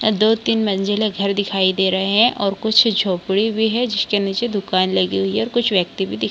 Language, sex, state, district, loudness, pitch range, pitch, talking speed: Hindi, female, Bihar, Kishanganj, -18 LUFS, 190-220 Hz, 205 Hz, 240 wpm